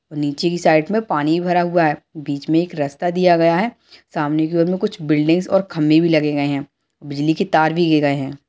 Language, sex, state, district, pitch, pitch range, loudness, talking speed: Hindi, female, Bihar, Jamui, 160 Hz, 150-175 Hz, -18 LUFS, 240 wpm